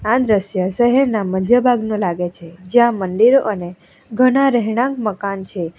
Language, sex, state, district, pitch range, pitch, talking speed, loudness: Gujarati, female, Gujarat, Valsad, 185-245 Hz, 215 Hz, 145 wpm, -16 LUFS